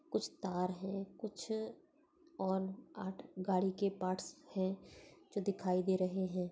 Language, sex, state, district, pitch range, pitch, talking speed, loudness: Hindi, female, Bihar, Begusarai, 185-205 Hz, 190 Hz, 140 wpm, -39 LUFS